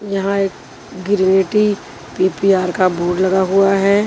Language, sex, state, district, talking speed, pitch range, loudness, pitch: Hindi, female, Punjab, Pathankot, 130 wpm, 185-200 Hz, -16 LUFS, 195 Hz